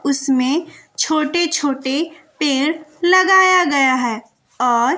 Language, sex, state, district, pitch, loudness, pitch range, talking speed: Hindi, female, Bihar, West Champaran, 300 Hz, -16 LUFS, 265-330 Hz, 95 wpm